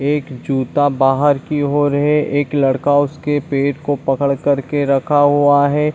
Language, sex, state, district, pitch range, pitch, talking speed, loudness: Hindi, male, Chhattisgarh, Bilaspur, 140-145 Hz, 145 Hz, 170 wpm, -16 LUFS